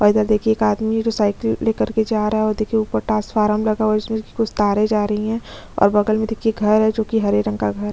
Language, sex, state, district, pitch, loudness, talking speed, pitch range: Hindi, female, Chhattisgarh, Kabirdham, 215 Hz, -19 LUFS, 295 wpm, 210-220 Hz